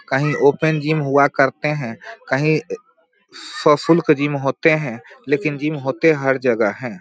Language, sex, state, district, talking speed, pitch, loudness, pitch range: Hindi, male, Bihar, Darbhanga, 145 wpm, 150 Hz, -18 LUFS, 135-155 Hz